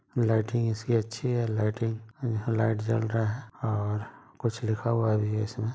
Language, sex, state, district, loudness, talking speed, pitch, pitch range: Hindi, male, Bihar, Madhepura, -29 LUFS, 185 wpm, 110 Hz, 110-115 Hz